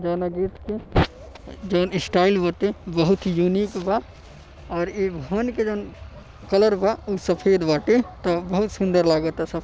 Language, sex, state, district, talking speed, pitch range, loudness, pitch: Bhojpuri, male, Uttar Pradesh, Deoria, 160 wpm, 175-200 Hz, -22 LUFS, 185 Hz